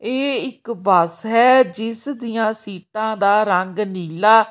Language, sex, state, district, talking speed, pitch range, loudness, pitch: Punjabi, female, Punjab, Kapurthala, 135 wpm, 195-235 Hz, -18 LUFS, 220 Hz